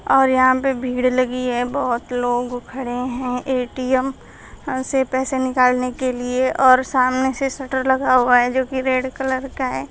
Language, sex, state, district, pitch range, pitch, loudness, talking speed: Hindi, female, Uttar Pradesh, Shamli, 250-260 Hz, 255 Hz, -19 LUFS, 175 wpm